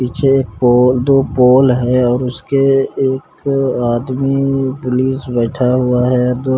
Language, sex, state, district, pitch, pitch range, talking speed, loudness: Hindi, male, Bihar, Patna, 130 Hz, 125-135 Hz, 130 wpm, -14 LUFS